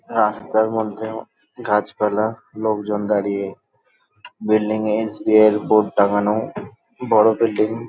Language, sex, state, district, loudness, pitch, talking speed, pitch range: Bengali, male, West Bengal, Dakshin Dinajpur, -19 LUFS, 110 Hz, 120 wpm, 105-110 Hz